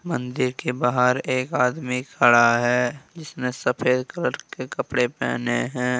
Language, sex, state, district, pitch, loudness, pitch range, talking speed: Hindi, male, Jharkhand, Deoghar, 125 Hz, -22 LUFS, 125-130 Hz, 140 wpm